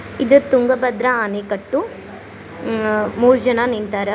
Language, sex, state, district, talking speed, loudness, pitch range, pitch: Kannada, female, Karnataka, Koppal, 115 wpm, -17 LUFS, 210-255 Hz, 240 Hz